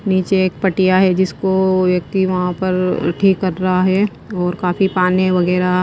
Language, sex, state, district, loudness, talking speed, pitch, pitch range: Hindi, female, Himachal Pradesh, Shimla, -16 LUFS, 175 wpm, 185 Hz, 180-190 Hz